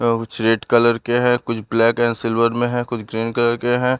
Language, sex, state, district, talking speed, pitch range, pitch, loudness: Hindi, male, Bihar, Patna, 255 wpm, 115-120 Hz, 120 Hz, -18 LUFS